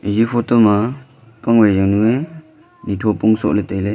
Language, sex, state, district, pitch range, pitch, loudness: Wancho, male, Arunachal Pradesh, Longding, 105-120 Hz, 110 Hz, -16 LUFS